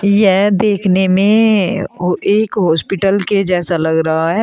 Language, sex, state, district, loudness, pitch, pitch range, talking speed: Hindi, female, Uttar Pradesh, Shamli, -13 LUFS, 195 Hz, 180-205 Hz, 150 wpm